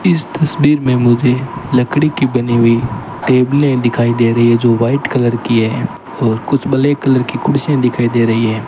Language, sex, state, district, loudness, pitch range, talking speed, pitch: Hindi, male, Rajasthan, Bikaner, -13 LUFS, 120-140 Hz, 195 wpm, 125 Hz